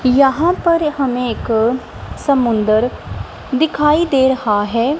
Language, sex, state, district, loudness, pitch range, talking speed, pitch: Hindi, female, Punjab, Kapurthala, -15 LUFS, 235-295 Hz, 110 wpm, 265 Hz